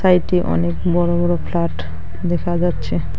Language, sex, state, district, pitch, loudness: Bengali, female, West Bengal, Alipurduar, 170 Hz, -19 LUFS